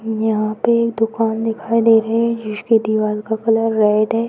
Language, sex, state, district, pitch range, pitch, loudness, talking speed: Hindi, female, Uttar Pradesh, Varanasi, 215-230 Hz, 225 Hz, -17 LUFS, 195 wpm